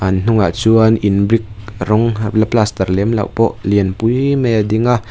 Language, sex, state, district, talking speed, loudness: Mizo, female, Mizoram, Aizawl, 210 wpm, -14 LUFS